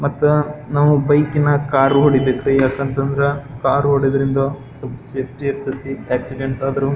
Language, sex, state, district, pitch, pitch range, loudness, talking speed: Kannada, male, Karnataka, Belgaum, 135 Hz, 135-145 Hz, -17 LUFS, 120 wpm